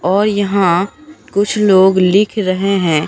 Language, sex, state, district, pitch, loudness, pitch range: Hindi, female, Bihar, Katihar, 195 Hz, -13 LUFS, 185-205 Hz